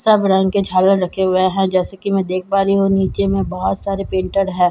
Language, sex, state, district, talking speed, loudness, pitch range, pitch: Hindi, female, Bihar, Katihar, 255 wpm, -17 LUFS, 185-195 Hz, 195 Hz